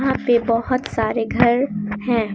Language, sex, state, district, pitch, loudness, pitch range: Hindi, female, Jharkhand, Deoghar, 235 Hz, -19 LUFS, 220-250 Hz